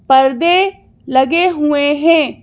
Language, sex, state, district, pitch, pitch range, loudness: Hindi, female, Madhya Pradesh, Bhopal, 300 Hz, 270-345 Hz, -13 LUFS